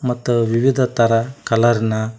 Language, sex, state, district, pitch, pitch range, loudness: Kannada, male, Karnataka, Koppal, 115 Hz, 115-125 Hz, -17 LUFS